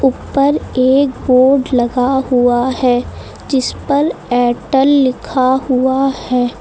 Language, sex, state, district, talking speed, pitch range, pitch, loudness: Hindi, female, Uttar Pradesh, Lucknow, 110 wpm, 250-270 Hz, 260 Hz, -14 LUFS